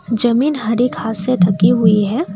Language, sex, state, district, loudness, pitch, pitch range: Hindi, female, Assam, Kamrup Metropolitan, -15 LUFS, 225 Hz, 205-245 Hz